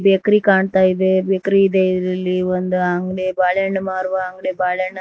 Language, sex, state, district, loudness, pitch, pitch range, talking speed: Kannada, female, Karnataka, Koppal, -17 LUFS, 185 Hz, 185-190 Hz, 145 wpm